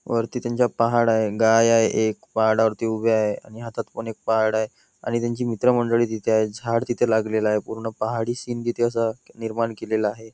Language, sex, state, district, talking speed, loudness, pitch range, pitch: Marathi, male, Maharashtra, Nagpur, 205 wpm, -22 LUFS, 110-120 Hz, 115 Hz